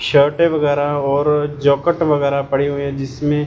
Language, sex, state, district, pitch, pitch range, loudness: Hindi, male, Punjab, Fazilka, 145 Hz, 140-150 Hz, -17 LUFS